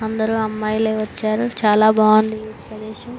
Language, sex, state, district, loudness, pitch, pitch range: Telugu, female, Andhra Pradesh, Srikakulam, -17 LUFS, 215 Hz, 215-220 Hz